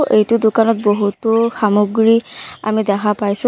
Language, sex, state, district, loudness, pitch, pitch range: Assamese, female, Assam, Sonitpur, -15 LUFS, 220 Hz, 210-225 Hz